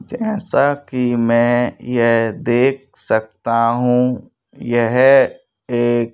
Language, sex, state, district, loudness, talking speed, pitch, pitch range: Hindi, male, Madhya Pradesh, Bhopal, -16 LUFS, 90 wpm, 120 Hz, 115-135 Hz